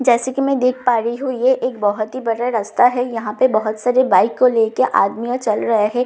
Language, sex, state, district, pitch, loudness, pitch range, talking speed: Hindi, female, Bihar, Katihar, 245 Hz, -17 LUFS, 220-255 Hz, 285 wpm